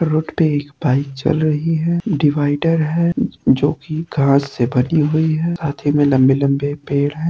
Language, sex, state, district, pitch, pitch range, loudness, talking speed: Hindi, male, Uttar Pradesh, Jyotiba Phule Nagar, 150 Hz, 140-160 Hz, -17 LUFS, 180 wpm